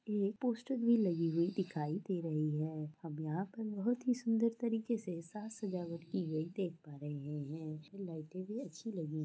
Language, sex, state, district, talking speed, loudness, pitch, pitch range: Hindi, female, Rajasthan, Nagaur, 180 wpm, -39 LUFS, 185 Hz, 155-220 Hz